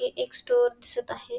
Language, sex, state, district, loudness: Marathi, female, Maharashtra, Sindhudurg, -27 LUFS